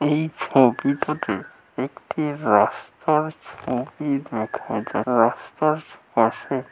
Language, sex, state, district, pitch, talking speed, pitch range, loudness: Bengali, male, West Bengal, North 24 Parganas, 140 Hz, 70 wpm, 120-155 Hz, -23 LUFS